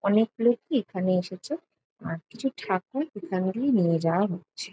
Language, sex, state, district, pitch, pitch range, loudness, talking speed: Bengali, female, West Bengal, Jalpaiguri, 200 Hz, 185-240 Hz, -27 LUFS, 150 wpm